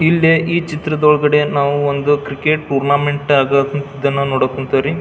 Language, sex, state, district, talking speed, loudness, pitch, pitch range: Kannada, male, Karnataka, Belgaum, 130 wpm, -15 LUFS, 145 Hz, 140-155 Hz